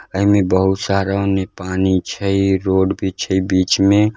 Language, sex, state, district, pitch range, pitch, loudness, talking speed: Hindi, male, Bihar, Darbhanga, 95-100 Hz, 95 Hz, -17 LUFS, 175 wpm